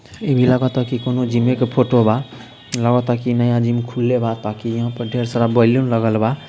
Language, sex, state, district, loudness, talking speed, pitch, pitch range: Bhojpuri, male, Bihar, Sitamarhi, -18 LUFS, 220 wpm, 120 Hz, 120-125 Hz